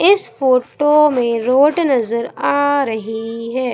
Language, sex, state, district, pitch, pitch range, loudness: Hindi, female, Madhya Pradesh, Umaria, 255 Hz, 235-295 Hz, -16 LUFS